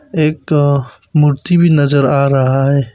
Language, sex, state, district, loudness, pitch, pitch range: Hindi, male, Arunachal Pradesh, Papum Pare, -13 LUFS, 140 Hz, 135-155 Hz